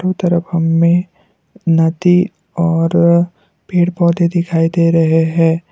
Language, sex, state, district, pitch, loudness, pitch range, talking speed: Hindi, male, Assam, Kamrup Metropolitan, 170 Hz, -14 LUFS, 165-180 Hz, 105 wpm